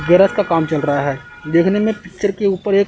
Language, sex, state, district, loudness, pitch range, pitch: Hindi, male, Chandigarh, Chandigarh, -17 LUFS, 160-200 Hz, 185 Hz